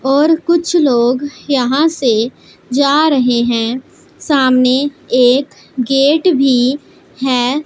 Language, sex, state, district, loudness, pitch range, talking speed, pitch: Hindi, female, Punjab, Pathankot, -13 LUFS, 250-300 Hz, 100 wpm, 270 Hz